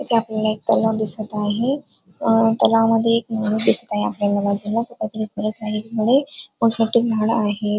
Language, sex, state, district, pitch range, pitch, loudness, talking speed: Marathi, female, Maharashtra, Dhule, 210-230 Hz, 220 Hz, -20 LUFS, 125 wpm